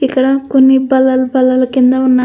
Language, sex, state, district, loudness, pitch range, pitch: Telugu, female, Andhra Pradesh, Anantapur, -11 LUFS, 255-265 Hz, 260 Hz